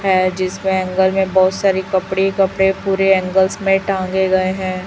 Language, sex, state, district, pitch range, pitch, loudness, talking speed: Hindi, female, Chhattisgarh, Raipur, 185-195 Hz, 190 Hz, -16 LUFS, 185 wpm